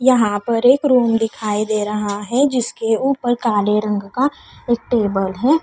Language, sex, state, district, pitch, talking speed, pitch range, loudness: Hindi, female, Haryana, Charkhi Dadri, 225 Hz, 170 wpm, 210-250 Hz, -18 LUFS